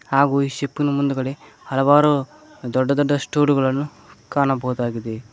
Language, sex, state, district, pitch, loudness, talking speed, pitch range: Kannada, male, Karnataka, Koppal, 140 Hz, -20 LUFS, 115 wpm, 130-145 Hz